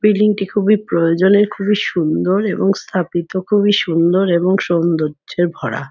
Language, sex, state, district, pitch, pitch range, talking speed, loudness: Bengali, female, West Bengal, Kolkata, 185 Hz, 170-205 Hz, 140 wpm, -16 LUFS